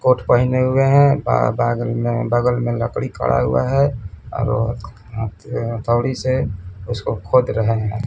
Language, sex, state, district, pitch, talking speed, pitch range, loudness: Hindi, male, Bihar, Kaimur, 115 Hz, 155 wpm, 105-125 Hz, -18 LUFS